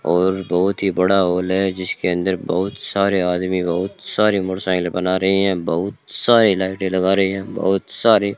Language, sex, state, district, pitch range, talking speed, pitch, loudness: Hindi, male, Rajasthan, Bikaner, 90-100 Hz, 185 wpm, 95 Hz, -18 LUFS